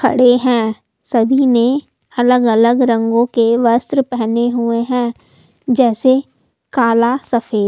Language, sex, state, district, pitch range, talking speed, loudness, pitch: Hindi, female, Delhi, New Delhi, 230-250 Hz, 110 wpm, -14 LUFS, 240 Hz